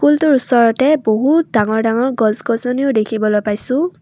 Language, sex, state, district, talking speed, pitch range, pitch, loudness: Assamese, female, Assam, Kamrup Metropolitan, 135 wpm, 220-275 Hz, 240 Hz, -15 LUFS